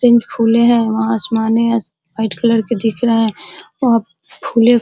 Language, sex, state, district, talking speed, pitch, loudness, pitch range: Hindi, female, Uttar Pradesh, Hamirpur, 150 wpm, 230 Hz, -15 LUFS, 220-235 Hz